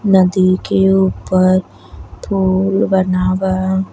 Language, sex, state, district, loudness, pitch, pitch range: Bhojpuri, female, Uttar Pradesh, Deoria, -14 LUFS, 185 Hz, 185-190 Hz